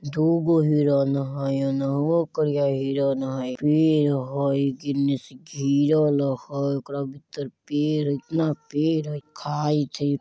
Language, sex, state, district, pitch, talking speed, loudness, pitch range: Hindi, male, Bihar, Vaishali, 140 Hz, 130 wpm, -24 LUFS, 140-150 Hz